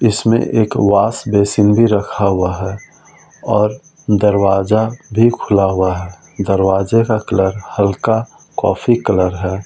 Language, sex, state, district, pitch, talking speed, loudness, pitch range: Hindi, male, Delhi, New Delhi, 105 Hz, 130 wpm, -15 LUFS, 95-115 Hz